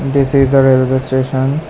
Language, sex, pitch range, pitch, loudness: English, male, 130-140 Hz, 135 Hz, -12 LUFS